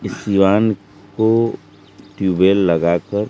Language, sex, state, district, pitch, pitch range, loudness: Hindi, male, Bihar, Kaimur, 100 Hz, 95-110 Hz, -16 LUFS